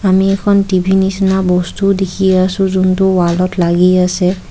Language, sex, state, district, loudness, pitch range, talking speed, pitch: Assamese, female, Assam, Kamrup Metropolitan, -12 LUFS, 180-190 Hz, 145 wpm, 190 Hz